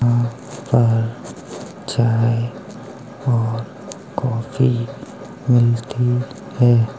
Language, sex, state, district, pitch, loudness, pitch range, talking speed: Hindi, male, Uttar Pradesh, Jalaun, 120 Hz, -19 LUFS, 115-125 Hz, 60 wpm